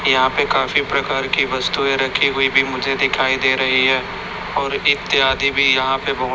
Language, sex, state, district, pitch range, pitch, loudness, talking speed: Hindi, male, Chhattisgarh, Raipur, 130-135 Hz, 135 Hz, -17 LUFS, 190 wpm